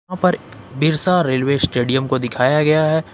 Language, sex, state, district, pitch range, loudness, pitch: Hindi, male, Jharkhand, Ranchi, 130-160 Hz, -17 LUFS, 150 Hz